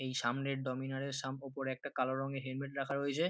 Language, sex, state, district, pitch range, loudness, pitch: Bengali, male, West Bengal, North 24 Parganas, 130-140 Hz, -38 LUFS, 135 Hz